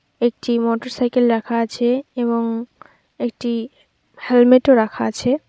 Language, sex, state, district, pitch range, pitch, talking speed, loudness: Bengali, female, West Bengal, Jalpaiguri, 230-250 Hz, 240 Hz, 110 wpm, -18 LUFS